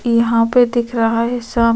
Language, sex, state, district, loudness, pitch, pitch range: Hindi, female, Uttar Pradesh, Etah, -16 LUFS, 235 Hz, 230-240 Hz